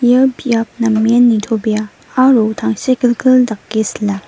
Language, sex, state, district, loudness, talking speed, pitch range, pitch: Garo, female, Meghalaya, West Garo Hills, -13 LUFS, 110 wpm, 220-245 Hz, 230 Hz